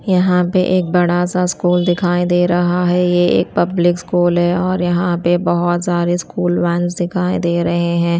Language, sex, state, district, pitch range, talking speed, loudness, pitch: Hindi, female, Punjab, Kapurthala, 175-180 Hz, 190 wpm, -15 LUFS, 175 Hz